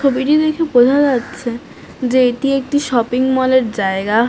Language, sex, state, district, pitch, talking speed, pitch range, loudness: Bengali, female, West Bengal, North 24 Parganas, 260 Hz, 155 wpm, 240-275 Hz, -15 LUFS